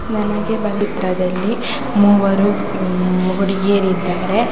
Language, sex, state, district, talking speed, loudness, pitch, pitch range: Kannada, female, Karnataka, Gulbarga, 65 wpm, -17 LUFS, 200 Hz, 185-210 Hz